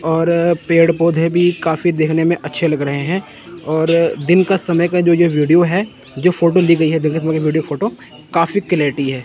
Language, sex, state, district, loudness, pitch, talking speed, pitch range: Hindi, male, Chandigarh, Chandigarh, -15 LUFS, 165 Hz, 220 wpm, 155-175 Hz